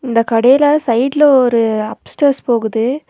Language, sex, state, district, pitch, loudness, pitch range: Tamil, female, Tamil Nadu, Nilgiris, 245 Hz, -13 LUFS, 230-280 Hz